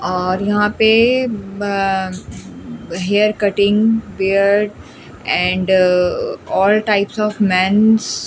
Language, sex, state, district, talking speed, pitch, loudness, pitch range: Hindi, female, Delhi, New Delhi, 95 wpm, 205 Hz, -15 LUFS, 190-215 Hz